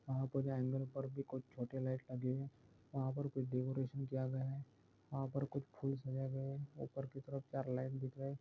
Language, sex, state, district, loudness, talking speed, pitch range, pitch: Hindi, male, Goa, North and South Goa, -43 LUFS, 200 wpm, 130-135 Hz, 135 Hz